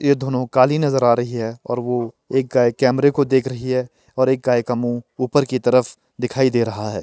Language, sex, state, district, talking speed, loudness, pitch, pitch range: Hindi, male, Himachal Pradesh, Shimla, 240 wpm, -19 LUFS, 125 Hz, 120-130 Hz